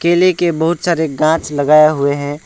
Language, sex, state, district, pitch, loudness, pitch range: Hindi, male, West Bengal, Alipurduar, 160 Hz, -13 LUFS, 145-170 Hz